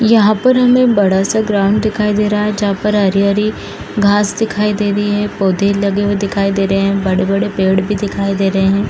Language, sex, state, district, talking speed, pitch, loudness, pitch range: Hindi, female, Bihar, East Champaran, 220 wpm, 205 Hz, -14 LUFS, 195-210 Hz